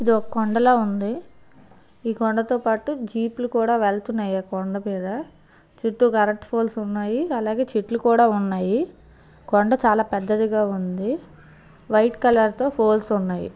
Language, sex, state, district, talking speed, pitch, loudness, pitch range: Telugu, female, Andhra Pradesh, Srikakulam, 130 wpm, 220 Hz, -22 LUFS, 210-235 Hz